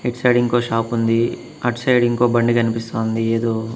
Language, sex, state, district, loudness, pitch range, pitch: Telugu, male, Andhra Pradesh, Annamaya, -18 LUFS, 115-120 Hz, 115 Hz